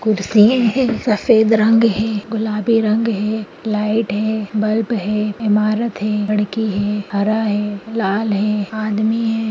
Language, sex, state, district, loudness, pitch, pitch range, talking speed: Bhojpuri, female, Uttar Pradesh, Gorakhpur, -17 LUFS, 215 Hz, 210-225 Hz, 140 wpm